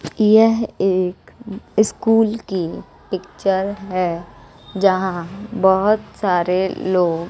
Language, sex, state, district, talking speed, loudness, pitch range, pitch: Hindi, female, Bihar, West Champaran, 80 wpm, -18 LUFS, 180-215 Hz, 190 Hz